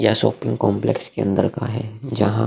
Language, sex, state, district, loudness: Hindi, male, Uttar Pradesh, Jalaun, -21 LUFS